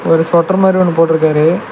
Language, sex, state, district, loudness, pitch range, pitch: Tamil, male, Tamil Nadu, Nilgiris, -11 LUFS, 160-180 Hz, 165 Hz